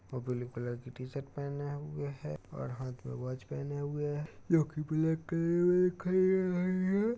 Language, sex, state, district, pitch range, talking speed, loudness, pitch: Hindi, male, Uttar Pradesh, Hamirpur, 130-170 Hz, 150 wpm, -34 LUFS, 145 Hz